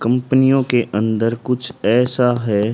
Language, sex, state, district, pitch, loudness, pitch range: Hindi, male, Haryana, Rohtak, 120 Hz, -17 LUFS, 110-125 Hz